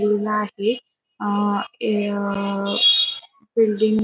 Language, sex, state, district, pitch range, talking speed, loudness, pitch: Marathi, female, Maharashtra, Pune, 205-220 Hz, 90 wpm, -20 LUFS, 210 Hz